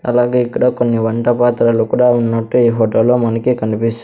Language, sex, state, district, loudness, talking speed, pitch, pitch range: Telugu, male, Andhra Pradesh, Sri Satya Sai, -14 LUFS, 180 wpm, 120 Hz, 115-120 Hz